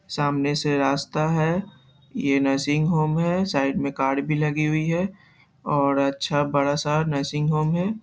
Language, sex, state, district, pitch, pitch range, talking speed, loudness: Hindi, male, Bihar, Saharsa, 150 Hz, 140-155 Hz, 150 wpm, -23 LUFS